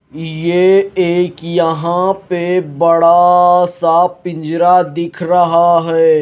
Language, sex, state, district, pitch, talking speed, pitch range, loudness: Hindi, male, Himachal Pradesh, Shimla, 175 Hz, 95 wpm, 170-180 Hz, -12 LUFS